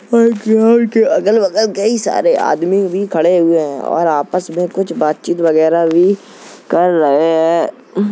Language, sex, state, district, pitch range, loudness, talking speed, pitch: Hindi, male, Uttar Pradesh, Jalaun, 165-215 Hz, -13 LUFS, 160 wpm, 180 Hz